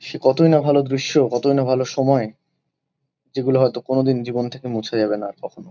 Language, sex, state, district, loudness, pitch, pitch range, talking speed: Bengali, male, West Bengal, Kolkata, -19 LUFS, 130 Hz, 120-140 Hz, 200 wpm